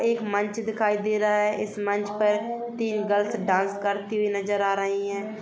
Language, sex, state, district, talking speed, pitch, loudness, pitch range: Hindi, female, Chhattisgarh, Rajnandgaon, 200 wpm, 210 Hz, -25 LUFS, 205-215 Hz